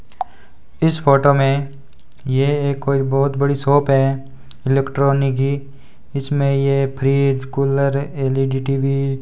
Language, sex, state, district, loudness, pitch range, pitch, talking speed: Hindi, male, Rajasthan, Bikaner, -18 LUFS, 135-140 Hz, 135 Hz, 115 wpm